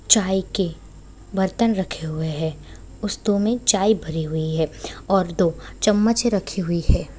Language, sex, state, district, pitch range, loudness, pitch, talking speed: Hindi, female, Bihar, Sitamarhi, 160-210 Hz, -22 LUFS, 190 Hz, 140 wpm